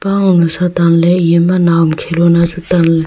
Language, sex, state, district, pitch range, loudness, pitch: Wancho, female, Arunachal Pradesh, Longding, 170-180 Hz, -11 LUFS, 170 Hz